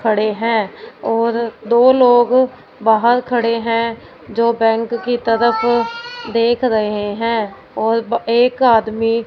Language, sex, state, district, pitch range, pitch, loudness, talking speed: Hindi, female, Punjab, Fazilka, 225-240 Hz, 230 Hz, -16 LUFS, 115 wpm